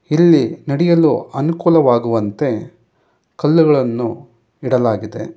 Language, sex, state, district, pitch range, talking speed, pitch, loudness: Kannada, male, Karnataka, Bangalore, 120-165 Hz, 55 wpm, 145 Hz, -15 LUFS